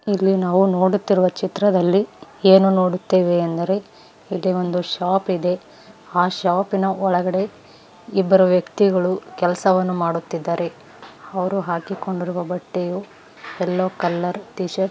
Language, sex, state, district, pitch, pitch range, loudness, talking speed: Kannada, female, Karnataka, Raichur, 185 Hz, 180-195 Hz, -20 LUFS, 95 wpm